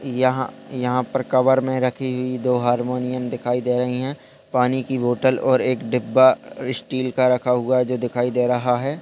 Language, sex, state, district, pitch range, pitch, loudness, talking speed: Hindi, male, Bihar, Begusarai, 125-130 Hz, 125 Hz, -21 LUFS, 175 wpm